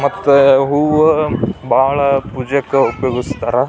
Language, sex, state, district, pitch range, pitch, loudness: Kannada, male, Karnataka, Belgaum, 130-140 Hz, 140 Hz, -14 LUFS